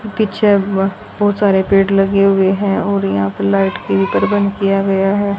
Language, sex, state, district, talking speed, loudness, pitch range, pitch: Hindi, female, Haryana, Jhajjar, 190 wpm, -14 LUFS, 195-200 Hz, 195 Hz